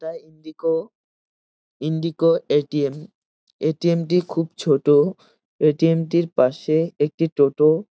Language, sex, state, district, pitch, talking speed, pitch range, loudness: Bengali, male, West Bengal, Jalpaiguri, 160 Hz, 105 wpm, 150-165 Hz, -20 LUFS